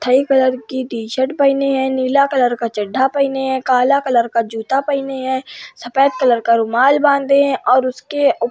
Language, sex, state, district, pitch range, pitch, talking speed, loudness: Hindi, female, Uttar Pradesh, Hamirpur, 245-275 Hz, 260 Hz, 205 wpm, -16 LUFS